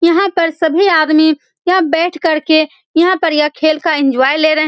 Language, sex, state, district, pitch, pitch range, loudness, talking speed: Hindi, female, Bihar, Saran, 320 Hz, 310-340 Hz, -13 LUFS, 230 wpm